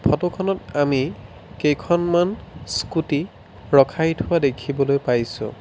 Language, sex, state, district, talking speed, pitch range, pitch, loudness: Assamese, male, Assam, Sonitpur, 95 wpm, 125-170 Hz, 145 Hz, -21 LUFS